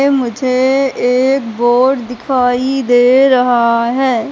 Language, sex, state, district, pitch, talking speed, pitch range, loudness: Hindi, female, Madhya Pradesh, Katni, 255 Hz, 95 wpm, 245-265 Hz, -12 LUFS